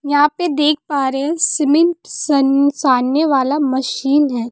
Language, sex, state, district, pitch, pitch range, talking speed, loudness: Hindi, female, Bihar, West Champaran, 285 Hz, 270-305 Hz, 145 wpm, -15 LUFS